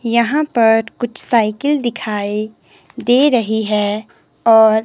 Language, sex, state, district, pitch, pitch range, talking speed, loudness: Hindi, male, Himachal Pradesh, Shimla, 225 Hz, 215-240 Hz, 110 wpm, -16 LUFS